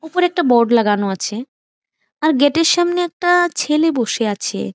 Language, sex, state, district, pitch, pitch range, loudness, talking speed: Bengali, female, West Bengal, Jhargram, 295 Hz, 225-345 Hz, -16 LUFS, 175 wpm